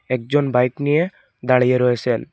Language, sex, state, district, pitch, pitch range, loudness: Bengali, male, Assam, Hailakandi, 125 Hz, 125-145 Hz, -18 LUFS